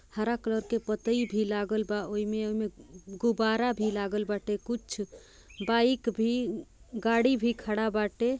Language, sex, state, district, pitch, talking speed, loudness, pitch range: Bhojpuri, female, Bihar, Gopalganj, 220 Hz, 135 wpm, -30 LUFS, 210-235 Hz